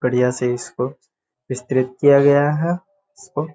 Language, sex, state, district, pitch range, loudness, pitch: Hindi, male, Bihar, Saharsa, 125-160 Hz, -19 LUFS, 140 Hz